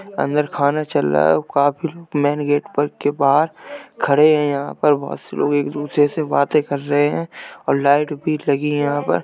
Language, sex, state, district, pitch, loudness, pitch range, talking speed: Hindi, male, Uttar Pradesh, Jalaun, 145 Hz, -18 LUFS, 140-150 Hz, 215 wpm